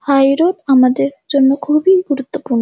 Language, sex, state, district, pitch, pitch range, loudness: Bengali, female, West Bengal, Jhargram, 275 Hz, 265-300 Hz, -14 LUFS